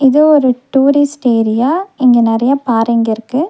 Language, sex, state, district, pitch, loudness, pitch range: Tamil, female, Tamil Nadu, Nilgiris, 255 Hz, -12 LUFS, 230-285 Hz